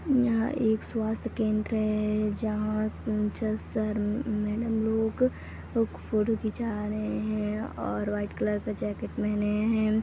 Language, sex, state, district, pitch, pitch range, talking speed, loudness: Hindi, female, Chhattisgarh, Kabirdham, 215 Hz, 210-225 Hz, 120 wpm, -29 LUFS